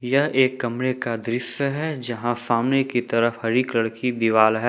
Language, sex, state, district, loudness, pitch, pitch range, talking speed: Hindi, male, Jharkhand, Ranchi, -21 LUFS, 120 Hz, 115-130 Hz, 190 wpm